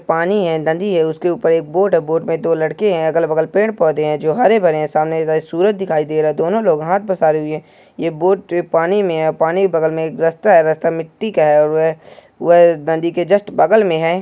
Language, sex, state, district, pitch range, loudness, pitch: Hindi, male, Andhra Pradesh, Srikakulam, 160-185 Hz, -15 LUFS, 165 Hz